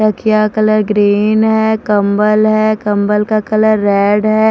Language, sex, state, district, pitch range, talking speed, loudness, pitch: Hindi, female, Maharashtra, Mumbai Suburban, 210-215 Hz, 145 wpm, -12 LUFS, 215 Hz